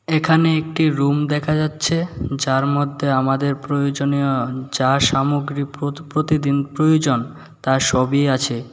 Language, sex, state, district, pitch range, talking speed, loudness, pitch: Bengali, male, Tripura, West Tripura, 135-155 Hz, 115 wpm, -19 LUFS, 140 Hz